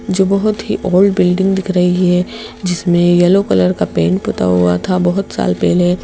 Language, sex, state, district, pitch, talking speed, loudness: Hindi, female, Madhya Pradesh, Bhopal, 180 Hz, 190 wpm, -14 LUFS